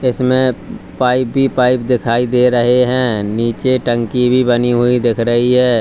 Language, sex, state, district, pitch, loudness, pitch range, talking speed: Hindi, male, Uttar Pradesh, Lalitpur, 125 Hz, -14 LUFS, 120-125 Hz, 165 wpm